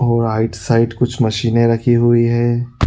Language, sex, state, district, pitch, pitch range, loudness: Hindi, male, Uttar Pradesh, Budaun, 115 Hz, 115-120 Hz, -15 LUFS